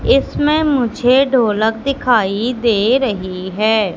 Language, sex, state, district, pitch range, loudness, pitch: Hindi, female, Madhya Pradesh, Katni, 210-255 Hz, -15 LUFS, 230 Hz